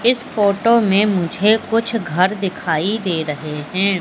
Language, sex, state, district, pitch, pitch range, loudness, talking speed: Hindi, female, Madhya Pradesh, Katni, 200 Hz, 175-225 Hz, -17 LUFS, 150 wpm